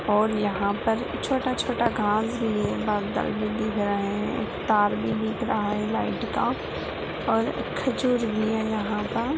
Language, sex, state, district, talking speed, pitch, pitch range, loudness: Hindi, female, Bihar, Purnia, 120 wpm, 215 Hz, 205-230 Hz, -26 LUFS